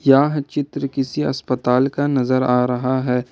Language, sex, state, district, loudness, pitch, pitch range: Hindi, male, Jharkhand, Ranchi, -19 LUFS, 130 Hz, 125-140 Hz